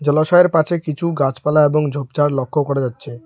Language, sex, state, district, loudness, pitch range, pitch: Bengali, male, West Bengal, Alipurduar, -17 LUFS, 135-155 Hz, 150 Hz